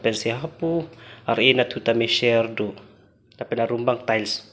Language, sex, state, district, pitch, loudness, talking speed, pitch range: Karbi, male, Assam, Karbi Anglong, 115 Hz, -22 LUFS, 170 wpm, 110-120 Hz